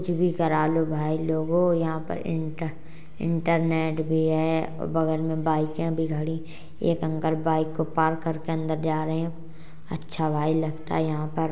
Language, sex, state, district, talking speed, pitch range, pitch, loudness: Hindi, male, Uttar Pradesh, Jalaun, 170 wpm, 160-165 Hz, 160 Hz, -26 LUFS